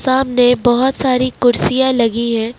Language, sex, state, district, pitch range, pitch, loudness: Hindi, male, Jharkhand, Ranchi, 240-260 Hz, 250 Hz, -14 LUFS